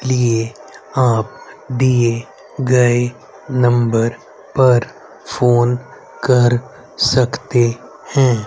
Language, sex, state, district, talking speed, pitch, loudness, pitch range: Hindi, male, Haryana, Rohtak, 70 wpm, 120 Hz, -16 LUFS, 120-130 Hz